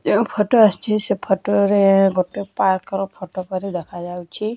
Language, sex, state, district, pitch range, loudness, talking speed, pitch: Odia, female, Odisha, Nuapada, 185-210 Hz, -18 LUFS, 155 wpm, 195 Hz